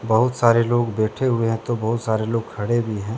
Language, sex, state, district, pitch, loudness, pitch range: Hindi, male, Jharkhand, Deoghar, 115 Hz, -21 LUFS, 110-120 Hz